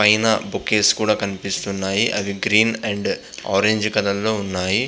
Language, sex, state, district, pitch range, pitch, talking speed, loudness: Telugu, male, Andhra Pradesh, Visakhapatnam, 100-110 Hz, 105 Hz, 135 wpm, -19 LUFS